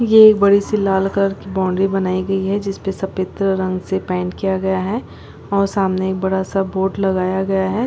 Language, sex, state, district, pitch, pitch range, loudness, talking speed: Hindi, female, Chhattisgarh, Bilaspur, 195 Hz, 190-195 Hz, -18 LUFS, 215 wpm